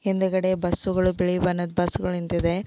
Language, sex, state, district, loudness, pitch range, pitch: Kannada, female, Karnataka, Belgaum, -24 LUFS, 175-185 Hz, 180 Hz